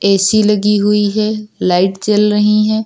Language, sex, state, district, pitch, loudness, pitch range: Hindi, female, Uttar Pradesh, Lucknow, 210 Hz, -13 LUFS, 200-215 Hz